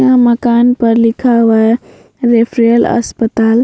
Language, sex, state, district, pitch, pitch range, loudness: Hindi, female, Bihar, Vaishali, 235 Hz, 230-240 Hz, -11 LUFS